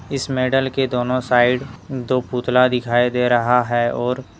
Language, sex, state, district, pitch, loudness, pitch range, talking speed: Hindi, male, Jharkhand, Deoghar, 125 Hz, -18 LUFS, 120-130 Hz, 165 wpm